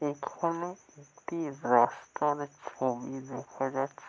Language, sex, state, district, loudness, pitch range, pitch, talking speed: Bengali, male, West Bengal, North 24 Parganas, -32 LUFS, 130-150 Hz, 140 Hz, 100 wpm